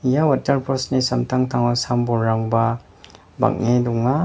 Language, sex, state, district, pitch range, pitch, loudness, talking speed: Garo, male, Meghalaya, West Garo Hills, 115-130 Hz, 120 Hz, -20 LUFS, 100 wpm